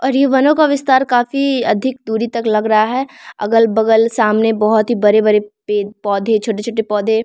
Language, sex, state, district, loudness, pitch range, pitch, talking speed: Hindi, female, Bihar, Samastipur, -14 LUFS, 215-255 Hz, 225 Hz, 175 wpm